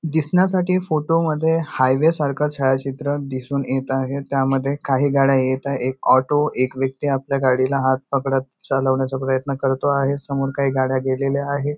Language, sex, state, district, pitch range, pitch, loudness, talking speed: Marathi, male, Maharashtra, Nagpur, 130-145 Hz, 135 Hz, -20 LUFS, 160 wpm